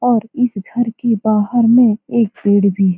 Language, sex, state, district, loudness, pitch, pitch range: Hindi, female, Bihar, Saran, -15 LUFS, 230 Hz, 205-240 Hz